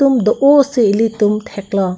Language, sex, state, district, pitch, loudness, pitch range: Karbi, female, Assam, Karbi Anglong, 220 Hz, -14 LUFS, 205-265 Hz